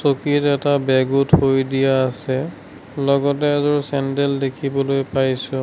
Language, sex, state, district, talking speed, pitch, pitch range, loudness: Assamese, male, Assam, Sonitpur, 115 wpm, 135 Hz, 135-145 Hz, -19 LUFS